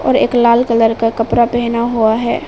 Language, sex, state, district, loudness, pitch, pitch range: Hindi, female, Arunachal Pradesh, Papum Pare, -13 LUFS, 235 Hz, 225-240 Hz